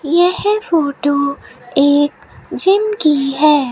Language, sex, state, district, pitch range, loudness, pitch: Hindi, female, Rajasthan, Bikaner, 285-355 Hz, -15 LUFS, 300 Hz